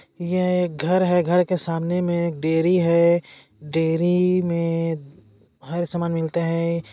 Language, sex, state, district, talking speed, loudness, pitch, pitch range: Hindi, male, Chhattisgarh, Korba, 145 wpm, -21 LUFS, 170 Hz, 160-175 Hz